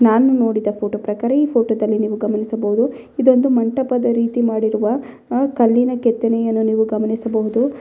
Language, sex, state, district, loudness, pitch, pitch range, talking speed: Kannada, female, Karnataka, Bellary, -17 LUFS, 230 Hz, 220-245 Hz, 130 wpm